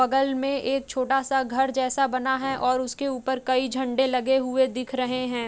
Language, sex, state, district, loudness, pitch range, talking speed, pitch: Hindi, female, Uttar Pradesh, Jalaun, -25 LUFS, 255-270 Hz, 210 wpm, 260 Hz